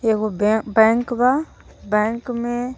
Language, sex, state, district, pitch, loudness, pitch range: Bhojpuri, female, Jharkhand, Palamu, 230 Hz, -19 LUFS, 215-245 Hz